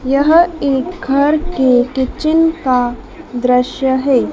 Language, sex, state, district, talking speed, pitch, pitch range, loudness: Hindi, female, Madhya Pradesh, Dhar, 110 wpm, 270 Hz, 255-320 Hz, -14 LUFS